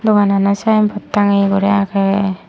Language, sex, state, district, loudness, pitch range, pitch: Chakma, female, Tripura, Unakoti, -14 LUFS, 195-205 Hz, 200 Hz